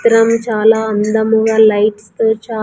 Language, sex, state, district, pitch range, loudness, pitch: Telugu, female, Andhra Pradesh, Sri Satya Sai, 215-225 Hz, -13 LUFS, 220 Hz